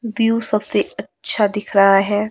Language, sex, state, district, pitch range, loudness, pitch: Hindi, male, Himachal Pradesh, Shimla, 205-225 Hz, -17 LUFS, 210 Hz